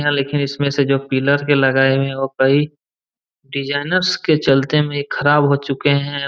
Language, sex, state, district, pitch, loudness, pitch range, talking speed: Hindi, male, Jharkhand, Jamtara, 140 Hz, -17 LUFS, 135-145 Hz, 180 wpm